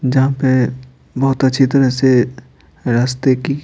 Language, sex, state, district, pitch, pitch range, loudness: Hindi, male, Bihar, Patna, 130 Hz, 125-135 Hz, -15 LUFS